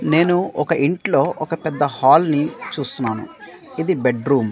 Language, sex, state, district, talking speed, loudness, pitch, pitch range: Telugu, male, Andhra Pradesh, Manyam, 145 wpm, -19 LUFS, 150 Hz, 135-165 Hz